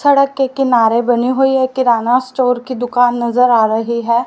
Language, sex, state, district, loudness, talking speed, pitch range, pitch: Hindi, female, Haryana, Rohtak, -14 LUFS, 195 wpm, 235-260 Hz, 245 Hz